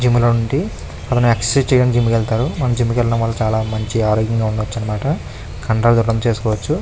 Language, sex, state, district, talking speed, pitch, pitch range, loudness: Telugu, male, Andhra Pradesh, Krishna, 200 wpm, 115 Hz, 110-120 Hz, -17 LUFS